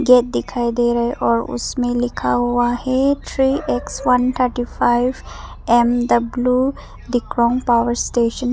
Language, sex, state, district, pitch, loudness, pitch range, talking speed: Hindi, female, Arunachal Pradesh, Papum Pare, 245 Hz, -18 LUFS, 235-250 Hz, 140 wpm